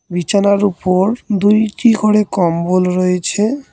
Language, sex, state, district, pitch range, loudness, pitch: Bengali, male, West Bengal, Cooch Behar, 180-215 Hz, -14 LUFS, 200 Hz